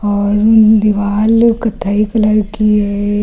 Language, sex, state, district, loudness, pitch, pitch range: Hindi, female, Uttar Pradesh, Lucknow, -12 LUFS, 210 Hz, 205-220 Hz